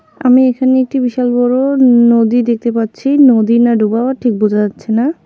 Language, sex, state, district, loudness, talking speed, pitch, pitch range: Bengali, female, West Bengal, Alipurduar, -12 LUFS, 170 wpm, 245 Hz, 230-260 Hz